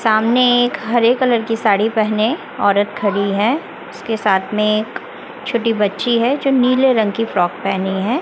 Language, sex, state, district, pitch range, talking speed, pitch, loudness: Hindi, female, Chhattisgarh, Raipur, 205-245 Hz, 175 wpm, 225 Hz, -16 LUFS